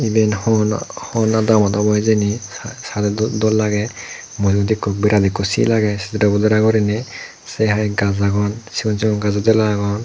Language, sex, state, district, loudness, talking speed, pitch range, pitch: Chakma, male, Tripura, Dhalai, -17 LUFS, 155 wpm, 105-110 Hz, 105 Hz